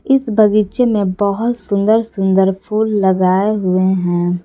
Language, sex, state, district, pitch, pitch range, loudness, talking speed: Hindi, female, Jharkhand, Palamu, 200 Hz, 190-220 Hz, -15 LUFS, 135 wpm